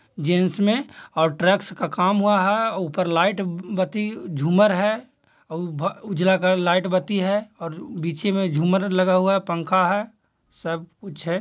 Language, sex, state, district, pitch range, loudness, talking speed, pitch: Hindi, male, Bihar, Jahanabad, 175-200 Hz, -22 LUFS, 170 wpm, 185 Hz